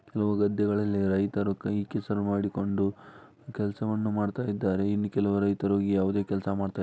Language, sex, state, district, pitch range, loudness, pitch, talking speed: Kannada, male, Karnataka, Dharwad, 100-105 Hz, -28 LUFS, 100 Hz, 130 wpm